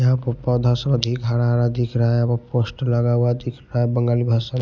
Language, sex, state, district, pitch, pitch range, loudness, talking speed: Hindi, male, Punjab, Pathankot, 120 Hz, 120-125 Hz, -20 LUFS, 235 wpm